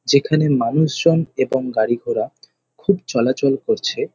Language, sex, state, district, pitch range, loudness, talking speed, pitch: Bengali, male, West Bengal, North 24 Parganas, 130-165 Hz, -19 LUFS, 115 wpm, 140 Hz